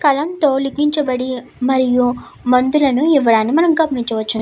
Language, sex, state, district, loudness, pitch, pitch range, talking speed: Telugu, female, Andhra Pradesh, Krishna, -16 LUFS, 265 Hz, 250-295 Hz, 95 wpm